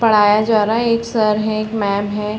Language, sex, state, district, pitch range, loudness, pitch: Hindi, female, Chhattisgarh, Balrampur, 210-225 Hz, -16 LUFS, 215 Hz